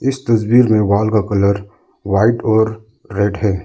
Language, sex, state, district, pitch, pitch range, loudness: Hindi, male, Arunachal Pradesh, Lower Dibang Valley, 110 Hz, 100-115 Hz, -15 LUFS